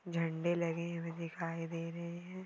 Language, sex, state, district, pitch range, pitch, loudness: Hindi, female, Maharashtra, Aurangabad, 165-170 Hz, 170 Hz, -39 LUFS